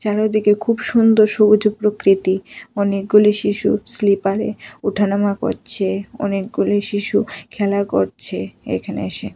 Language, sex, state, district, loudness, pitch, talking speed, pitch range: Bengali, female, Tripura, West Tripura, -18 LUFS, 205 Hz, 100 wpm, 200-210 Hz